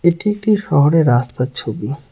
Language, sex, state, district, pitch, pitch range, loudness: Bengali, male, West Bengal, Cooch Behar, 150 Hz, 125-175 Hz, -16 LUFS